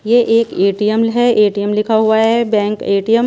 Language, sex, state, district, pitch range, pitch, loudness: Hindi, female, Punjab, Pathankot, 210-230 Hz, 220 Hz, -14 LUFS